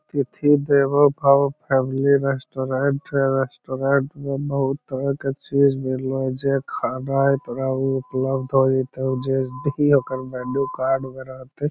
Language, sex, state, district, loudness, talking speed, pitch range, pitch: Magahi, male, Bihar, Lakhisarai, -21 LUFS, 135 wpm, 130-140 Hz, 135 Hz